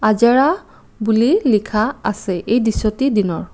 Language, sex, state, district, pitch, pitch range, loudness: Assamese, female, Assam, Kamrup Metropolitan, 220 Hz, 210-245 Hz, -17 LUFS